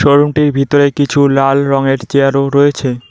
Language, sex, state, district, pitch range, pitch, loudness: Bengali, male, West Bengal, Cooch Behar, 135-145 Hz, 140 Hz, -11 LUFS